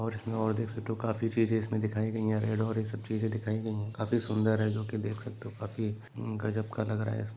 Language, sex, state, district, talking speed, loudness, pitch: Hindi, male, Jharkhand, Sahebganj, 300 wpm, -32 LUFS, 110 Hz